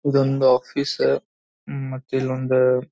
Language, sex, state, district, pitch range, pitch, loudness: Kannada, male, Karnataka, Belgaum, 130-135 Hz, 130 Hz, -21 LUFS